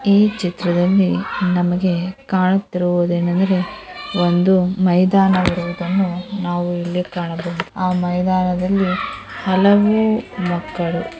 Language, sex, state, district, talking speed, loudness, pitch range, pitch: Kannada, female, Karnataka, Dharwad, 75 wpm, -18 LUFS, 175-195 Hz, 185 Hz